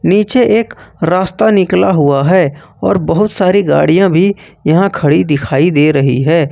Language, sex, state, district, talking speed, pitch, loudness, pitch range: Hindi, male, Jharkhand, Ranchi, 155 wpm, 180 Hz, -11 LUFS, 150-195 Hz